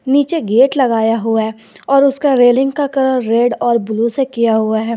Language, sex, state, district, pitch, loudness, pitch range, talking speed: Hindi, male, Jharkhand, Garhwa, 240 Hz, -14 LUFS, 225-270 Hz, 205 wpm